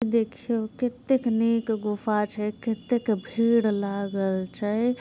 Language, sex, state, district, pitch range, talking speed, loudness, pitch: Hindi, female, Bihar, Muzaffarpur, 210-235 Hz, 110 wpm, -26 LUFS, 225 Hz